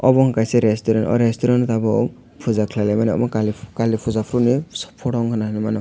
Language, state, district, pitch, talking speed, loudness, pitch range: Kokborok, Tripura, West Tripura, 115 Hz, 195 wpm, -19 LUFS, 110-120 Hz